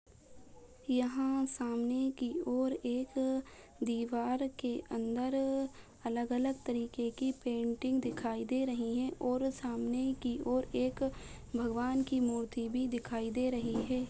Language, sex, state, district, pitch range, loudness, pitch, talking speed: Hindi, female, Bihar, Bhagalpur, 235-265 Hz, -35 LUFS, 250 Hz, 125 wpm